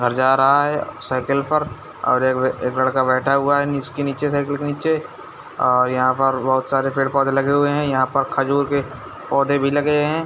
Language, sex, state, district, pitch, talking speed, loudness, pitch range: Hindi, male, Bihar, Gopalganj, 140 Hz, 195 wpm, -19 LUFS, 130-145 Hz